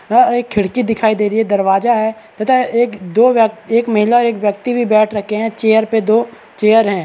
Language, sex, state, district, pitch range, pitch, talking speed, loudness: Hindi, male, Chhattisgarh, Balrampur, 215-235 Hz, 220 Hz, 180 wpm, -14 LUFS